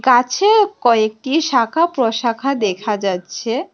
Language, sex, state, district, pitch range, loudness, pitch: Bengali, female, Tripura, West Tripura, 220-300 Hz, -17 LUFS, 240 Hz